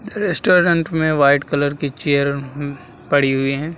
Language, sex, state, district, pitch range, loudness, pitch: Hindi, male, Bihar, Vaishali, 140-165 Hz, -17 LUFS, 145 Hz